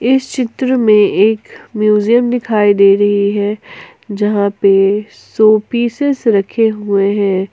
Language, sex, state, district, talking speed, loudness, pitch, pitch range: Hindi, female, Jharkhand, Ranchi, 130 wpm, -13 LUFS, 215 Hz, 205-240 Hz